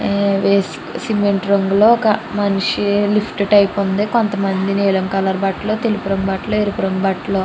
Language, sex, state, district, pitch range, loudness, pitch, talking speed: Telugu, female, Andhra Pradesh, Chittoor, 195-205 Hz, -17 LUFS, 200 Hz, 160 wpm